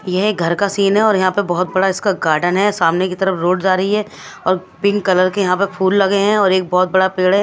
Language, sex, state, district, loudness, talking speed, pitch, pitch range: Hindi, female, Odisha, Malkangiri, -15 LUFS, 280 wpm, 190 Hz, 185-200 Hz